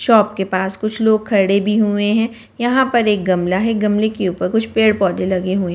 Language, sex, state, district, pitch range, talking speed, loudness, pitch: Hindi, female, Delhi, New Delhi, 190-220 Hz, 230 wpm, -16 LUFS, 210 Hz